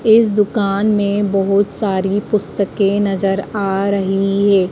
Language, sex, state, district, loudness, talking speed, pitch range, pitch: Hindi, female, Madhya Pradesh, Dhar, -16 LUFS, 125 wpm, 195-205 Hz, 200 Hz